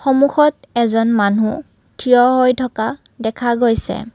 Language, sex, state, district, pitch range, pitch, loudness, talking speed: Assamese, female, Assam, Kamrup Metropolitan, 225-270 Hz, 245 Hz, -16 LUFS, 115 wpm